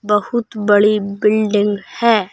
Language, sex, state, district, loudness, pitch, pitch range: Hindi, male, Madhya Pradesh, Bhopal, -16 LUFS, 210 Hz, 205-215 Hz